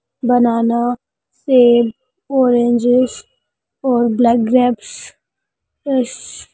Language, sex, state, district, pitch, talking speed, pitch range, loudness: Hindi, female, Bihar, Darbhanga, 245 Hz, 55 wpm, 235-255 Hz, -15 LUFS